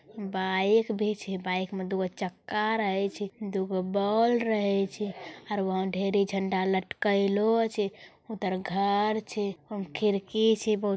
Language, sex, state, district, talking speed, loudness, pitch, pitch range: Angika, female, Bihar, Bhagalpur, 165 wpm, -28 LUFS, 200 Hz, 190-215 Hz